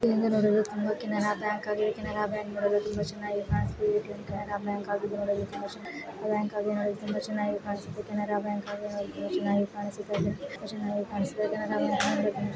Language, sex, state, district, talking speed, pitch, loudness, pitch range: Kannada, female, Karnataka, Chamarajanagar, 85 wpm, 205 Hz, -30 LUFS, 205-210 Hz